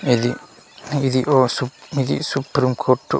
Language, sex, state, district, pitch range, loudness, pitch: Telugu, male, Andhra Pradesh, Manyam, 125-135 Hz, -20 LUFS, 130 Hz